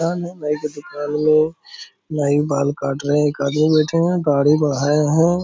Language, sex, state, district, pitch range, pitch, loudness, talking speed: Hindi, male, Bihar, Purnia, 145-155 Hz, 150 Hz, -18 LUFS, 210 wpm